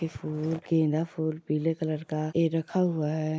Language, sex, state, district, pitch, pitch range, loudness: Hindi, female, Bihar, Jamui, 160 Hz, 155-165 Hz, -29 LUFS